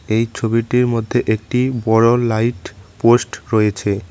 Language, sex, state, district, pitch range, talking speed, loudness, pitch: Bengali, male, West Bengal, Cooch Behar, 110-120 Hz, 115 wpm, -17 LUFS, 115 Hz